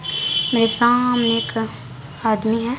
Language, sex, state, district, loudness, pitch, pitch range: Hindi, female, Chhattisgarh, Raipur, -17 LUFS, 220 Hz, 145-235 Hz